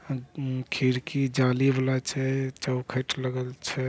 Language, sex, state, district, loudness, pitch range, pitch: Angika, male, Bihar, Begusarai, -28 LUFS, 130-135 Hz, 130 Hz